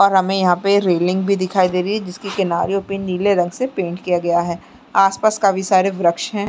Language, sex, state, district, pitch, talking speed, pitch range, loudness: Hindi, female, Chhattisgarh, Sarguja, 190 Hz, 240 wpm, 180-200 Hz, -18 LUFS